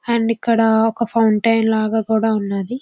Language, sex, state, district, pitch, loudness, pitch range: Telugu, female, Andhra Pradesh, Visakhapatnam, 225 Hz, -17 LUFS, 220-230 Hz